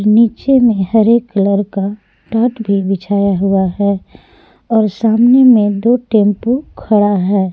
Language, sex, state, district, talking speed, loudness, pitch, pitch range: Hindi, female, Jharkhand, Garhwa, 135 wpm, -13 LUFS, 210 Hz, 200-230 Hz